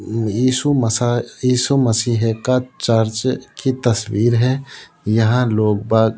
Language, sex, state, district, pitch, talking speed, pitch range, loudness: Hindi, male, Rajasthan, Jaipur, 120 Hz, 125 wpm, 110-125 Hz, -17 LUFS